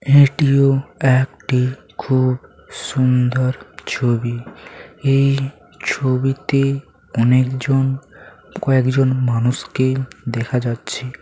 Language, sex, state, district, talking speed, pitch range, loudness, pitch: Bengali, male, West Bengal, Paschim Medinipur, 60 wpm, 125-135 Hz, -18 LUFS, 130 Hz